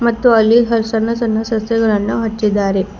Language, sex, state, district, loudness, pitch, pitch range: Kannada, female, Karnataka, Bidar, -15 LUFS, 225 Hz, 215-230 Hz